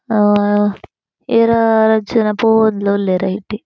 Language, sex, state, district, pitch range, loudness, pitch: Tulu, female, Karnataka, Dakshina Kannada, 205-225 Hz, -14 LUFS, 210 Hz